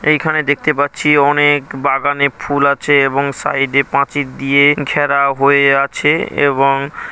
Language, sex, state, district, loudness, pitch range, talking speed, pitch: Bengali, male, West Bengal, Paschim Medinipur, -13 LUFS, 140-145 Hz, 135 wpm, 140 Hz